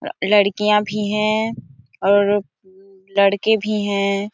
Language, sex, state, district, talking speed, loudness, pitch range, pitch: Hindi, female, Chhattisgarh, Sarguja, 95 wpm, -18 LUFS, 195-210 Hz, 200 Hz